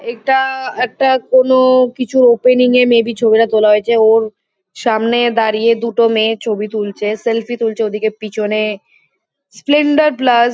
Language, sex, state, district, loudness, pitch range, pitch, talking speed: Bengali, female, West Bengal, Kolkata, -13 LUFS, 220-250 Hz, 230 Hz, 150 wpm